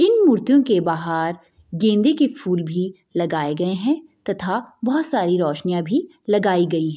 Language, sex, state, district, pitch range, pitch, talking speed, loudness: Hindi, female, Bihar, Madhepura, 170-275 Hz, 185 Hz, 165 wpm, -20 LUFS